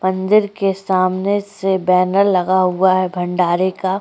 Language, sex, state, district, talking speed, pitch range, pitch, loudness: Hindi, female, Uttar Pradesh, Jyotiba Phule Nagar, 150 wpm, 185-195 Hz, 185 Hz, -16 LUFS